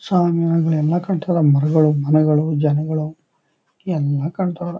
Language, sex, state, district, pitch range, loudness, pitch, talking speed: Kannada, male, Karnataka, Chamarajanagar, 150-175 Hz, -18 LUFS, 160 Hz, 100 wpm